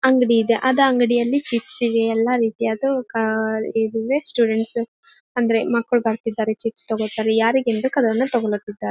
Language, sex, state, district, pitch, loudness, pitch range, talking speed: Kannada, female, Karnataka, Gulbarga, 230 Hz, -20 LUFS, 225-245 Hz, 140 wpm